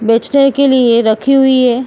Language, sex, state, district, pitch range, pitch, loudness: Hindi, female, Uttar Pradesh, Jyotiba Phule Nagar, 235-275 Hz, 255 Hz, -10 LUFS